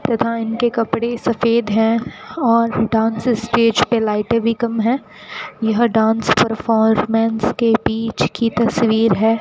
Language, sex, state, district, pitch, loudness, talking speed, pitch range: Hindi, female, Rajasthan, Bikaner, 225 Hz, -17 LUFS, 135 wpm, 220-235 Hz